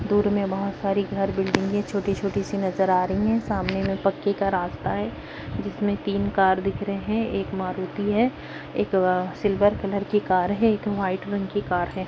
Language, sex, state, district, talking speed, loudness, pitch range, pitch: Hindi, female, Uttar Pradesh, Jyotiba Phule Nagar, 205 wpm, -24 LUFS, 190-205 Hz, 195 Hz